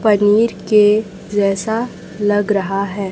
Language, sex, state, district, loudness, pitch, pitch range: Hindi, female, Chhattisgarh, Raipur, -16 LUFS, 205 Hz, 200-215 Hz